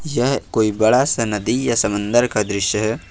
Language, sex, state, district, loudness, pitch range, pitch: Hindi, male, Jharkhand, Ranchi, -18 LUFS, 105-120 Hz, 110 Hz